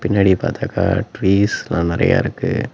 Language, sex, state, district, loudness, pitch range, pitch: Tamil, male, Tamil Nadu, Namakkal, -17 LUFS, 95-115 Hz, 100 Hz